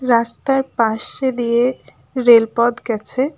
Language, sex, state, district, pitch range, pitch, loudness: Bengali, female, West Bengal, Alipurduar, 230-260 Hz, 240 Hz, -16 LUFS